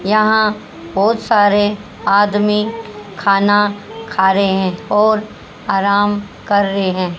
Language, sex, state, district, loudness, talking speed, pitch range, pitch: Hindi, female, Haryana, Charkhi Dadri, -15 LUFS, 110 wpm, 195-210 Hz, 205 Hz